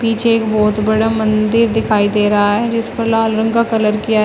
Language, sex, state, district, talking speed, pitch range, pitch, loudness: Hindi, female, Uttar Pradesh, Shamli, 225 wpm, 215-225 Hz, 220 Hz, -14 LUFS